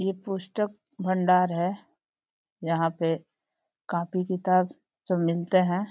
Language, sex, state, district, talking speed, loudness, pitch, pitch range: Hindi, female, Uttar Pradesh, Deoria, 110 wpm, -27 LUFS, 185 Hz, 170-190 Hz